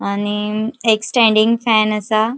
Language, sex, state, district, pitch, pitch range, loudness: Konkani, female, Goa, North and South Goa, 215 Hz, 210-225 Hz, -16 LUFS